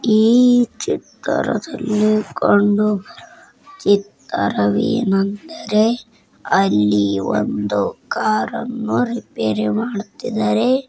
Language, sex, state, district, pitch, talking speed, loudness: Kannada, female, Karnataka, Dharwad, 215 Hz, 60 wpm, -18 LUFS